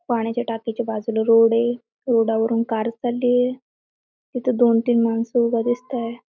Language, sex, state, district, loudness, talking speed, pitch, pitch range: Marathi, female, Maharashtra, Aurangabad, -21 LUFS, 130 wpm, 235 Hz, 230-245 Hz